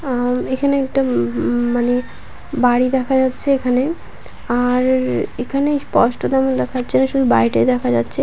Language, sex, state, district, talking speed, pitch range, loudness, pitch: Bengali, female, West Bengal, Paschim Medinipur, 145 wpm, 230-265 Hz, -17 LUFS, 250 Hz